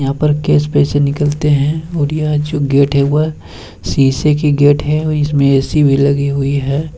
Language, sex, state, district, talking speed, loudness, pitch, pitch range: Hindi, male, Bihar, Bhagalpur, 200 wpm, -13 LUFS, 145 Hz, 140-150 Hz